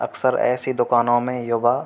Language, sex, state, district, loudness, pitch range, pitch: Hindi, male, Uttar Pradesh, Hamirpur, -20 LUFS, 120-125 Hz, 120 Hz